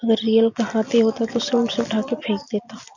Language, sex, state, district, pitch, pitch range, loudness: Hindi, female, Chhattisgarh, Bastar, 230 Hz, 220-240 Hz, -21 LUFS